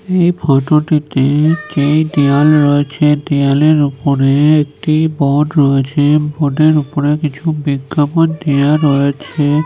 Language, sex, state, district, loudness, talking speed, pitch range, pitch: Bengali, male, West Bengal, North 24 Parganas, -13 LUFS, 110 wpm, 140-155 Hz, 150 Hz